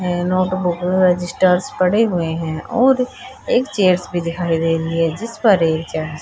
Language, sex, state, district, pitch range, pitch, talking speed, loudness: Hindi, female, Haryana, Charkhi Dadri, 165-190 Hz, 180 Hz, 165 wpm, -18 LUFS